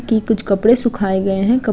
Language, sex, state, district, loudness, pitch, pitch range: Hindi, female, Uttar Pradesh, Gorakhpur, -16 LUFS, 220 Hz, 195-235 Hz